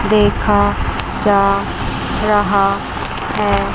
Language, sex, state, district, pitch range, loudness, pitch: Hindi, female, Chandigarh, Chandigarh, 200-205 Hz, -16 LUFS, 205 Hz